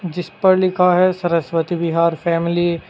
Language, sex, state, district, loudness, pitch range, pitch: Hindi, male, Uttar Pradesh, Saharanpur, -17 LUFS, 170-180 Hz, 175 Hz